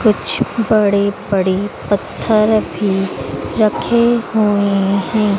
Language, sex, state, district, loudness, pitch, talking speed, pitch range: Hindi, female, Madhya Pradesh, Dhar, -16 LUFS, 205 Hz, 90 wpm, 195-215 Hz